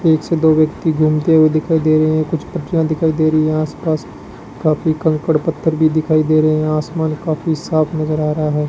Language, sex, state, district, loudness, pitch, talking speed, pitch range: Hindi, male, Rajasthan, Bikaner, -16 LUFS, 155 Hz, 220 wpm, 155-160 Hz